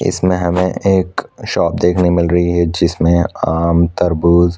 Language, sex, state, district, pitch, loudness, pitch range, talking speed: Hindi, male, Chhattisgarh, Korba, 85 Hz, -14 LUFS, 85-90 Hz, 145 wpm